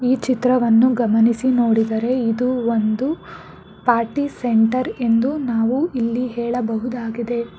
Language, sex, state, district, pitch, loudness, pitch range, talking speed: Kannada, female, Karnataka, Bangalore, 240 Hz, -19 LUFS, 225-255 Hz, 95 wpm